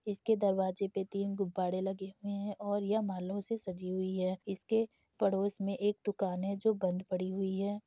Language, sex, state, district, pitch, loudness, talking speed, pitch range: Hindi, female, Uttar Pradesh, Jalaun, 195 Hz, -35 LUFS, 200 wpm, 190-205 Hz